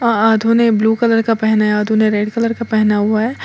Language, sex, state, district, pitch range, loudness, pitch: Hindi, female, Uttar Pradesh, Lalitpur, 215-230 Hz, -14 LUFS, 220 Hz